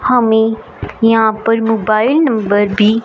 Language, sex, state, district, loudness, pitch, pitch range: Hindi, female, Punjab, Fazilka, -13 LUFS, 220 Hz, 215-230 Hz